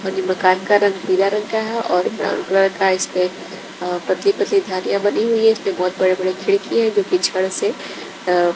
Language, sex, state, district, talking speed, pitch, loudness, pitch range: Hindi, female, Bihar, West Champaran, 210 wpm, 195 Hz, -18 LUFS, 185-225 Hz